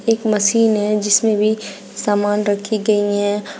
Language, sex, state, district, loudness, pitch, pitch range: Hindi, female, Uttar Pradesh, Shamli, -17 LUFS, 210 Hz, 205-215 Hz